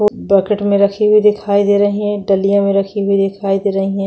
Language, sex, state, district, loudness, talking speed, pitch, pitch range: Hindi, female, Chhattisgarh, Korba, -14 LUFS, 235 wpm, 200 Hz, 195-205 Hz